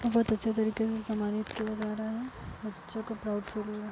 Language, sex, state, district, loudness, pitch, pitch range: Hindi, female, Uttar Pradesh, Deoria, -33 LUFS, 220 Hz, 210-225 Hz